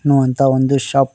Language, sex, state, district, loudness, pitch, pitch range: Kannada, male, Karnataka, Koppal, -15 LUFS, 135 Hz, 130-140 Hz